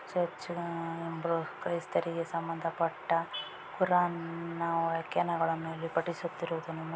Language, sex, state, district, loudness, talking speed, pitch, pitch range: Kannada, female, Karnataka, Raichur, -33 LUFS, 50 wpm, 165 Hz, 165-170 Hz